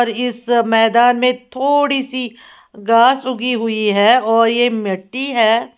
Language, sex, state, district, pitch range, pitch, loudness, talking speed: Hindi, female, Uttar Pradesh, Lalitpur, 225-255 Hz, 240 Hz, -15 LUFS, 135 wpm